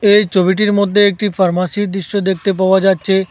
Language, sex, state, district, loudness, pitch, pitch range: Bengali, male, Assam, Hailakandi, -14 LUFS, 195 Hz, 190-205 Hz